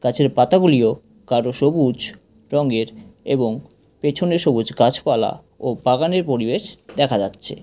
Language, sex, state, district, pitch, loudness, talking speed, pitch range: Bengali, male, West Bengal, Cooch Behar, 130 Hz, -19 LUFS, 110 wpm, 120-145 Hz